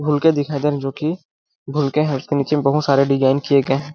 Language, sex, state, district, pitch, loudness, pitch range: Hindi, male, Chhattisgarh, Balrampur, 145 Hz, -18 LUFS, 135-150 Hz